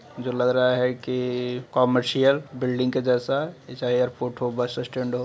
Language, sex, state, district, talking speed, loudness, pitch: Hindi, male, Bihar, Gaya, 195 wpm, -24 LUFS, 125 Hz